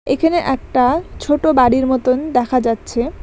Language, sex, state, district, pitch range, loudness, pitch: Bengali, female, West Bengal, Alipurduar, 250-295 Hz, -16 LUFS, 260 Hz